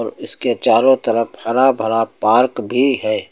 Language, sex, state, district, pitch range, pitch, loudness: Hindi, male, Uttar Pradesh, Lucknow, 115-130 Hz, 115 Hz, -16 LUFS